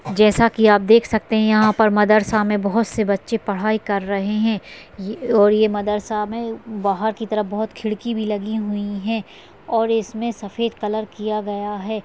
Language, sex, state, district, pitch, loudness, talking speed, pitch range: Hindi, female, Maharashtra, Sindhudurg, 215 Hz, -19 LUFS, 195 wpm, 205-225 Hz